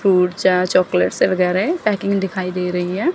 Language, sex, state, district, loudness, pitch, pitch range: Hindi, female, Chandigarh, Chandigarh, -18 LUFS, 185 Hz, 180-195 Hz